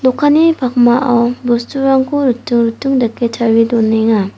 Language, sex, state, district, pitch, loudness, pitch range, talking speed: Garo, female, Meghalaya, South Garo Hills, 240 Hz, -13 LUFS, 230-265 Hz, 95 wpm